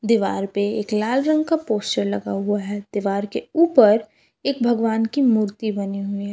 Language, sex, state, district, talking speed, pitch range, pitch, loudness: Hindi, female, Jharkhand, Palamu, 190 wpm, 200-240 Hz, 215 Hz, -21 LUFS